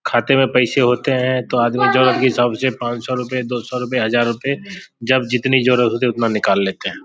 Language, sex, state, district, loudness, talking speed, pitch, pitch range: Hindi, male, Bihar, Samastipur, -17 LUFS, 245 wpm, 125 Hz, 120-130 Hz